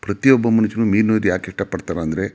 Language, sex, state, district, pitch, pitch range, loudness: Kannada, male, Karnataka, Mysore, 100 Hz, 95-110 Hz, -18 LUFS